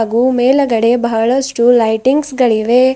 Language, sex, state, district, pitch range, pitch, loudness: Kannada, female, Karnataka, Bidar, 230-260 Hz, 245 Hz, -12 LUFS